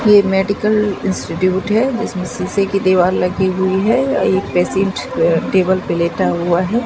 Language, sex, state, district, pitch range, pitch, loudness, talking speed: Hindi, female, Bihar, Katihar, 180-205 Hz, 190 Hz, -16 LUFS, 155 wpm